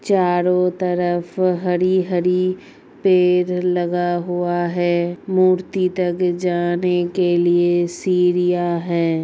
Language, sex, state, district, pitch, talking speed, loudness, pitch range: Hindi, female, Uttar Pradesh, Gorakhpur, 180 Hz, 90 wpm, -18 LUFS, 175-180 Hz